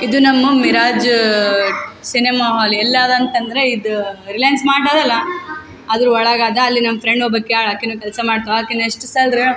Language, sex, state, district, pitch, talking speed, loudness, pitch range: Kannada, female, Karnataka, Raichur, 235 Hz, 155 wpm, -14 LUFS, 225-255 Hz